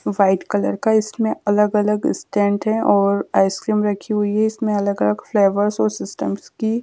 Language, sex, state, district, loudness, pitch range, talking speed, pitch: Hindi, female, Madhya Pradesh, Dhar, -19 LUFS, 200-220 Hz, 150 wpm, 205 Hz